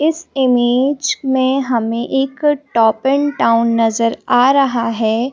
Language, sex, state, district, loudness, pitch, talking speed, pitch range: Hindi, female, Madhya Pradesh, Bhopal, -15 LUFS, 260 Hz, 135 wpm, 230-275 Hz